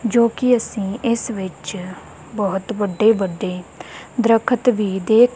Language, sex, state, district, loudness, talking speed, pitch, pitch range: Punjabi, female, Punjab, Kapurthala, -19 LUFS, 125 wpm, 220 Hz, 190-235 Hz